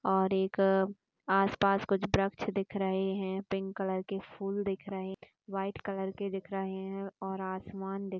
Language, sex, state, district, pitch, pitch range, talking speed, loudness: Hindi, female, Uttar Pradesh, Gorakhpur, 195 Hz, 190-195 Hz, 175 wpm, -33 LUFS